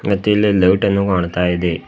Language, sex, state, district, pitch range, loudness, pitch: Kannada, male, Karnataka, Bidar, 90-100 Hz, -15 LUFS, 95 Hz